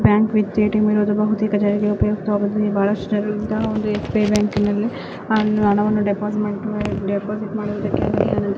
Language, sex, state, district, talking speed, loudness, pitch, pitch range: Kannada, female, Karnataka, Chamarajanagar, 140 wpm, -20 LUFS, 210 Hz, 205-215 Hz